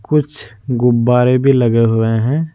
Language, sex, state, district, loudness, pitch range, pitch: Hindi, male, Uttar Pradesh, Saharanpur, -14 LUFS, 115-135 Hz, 125 Hz